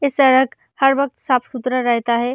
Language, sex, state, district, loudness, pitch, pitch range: Hindi, female, Bihar, Samastipur, -17 LUFS, 255 Hz, 250-270 Hz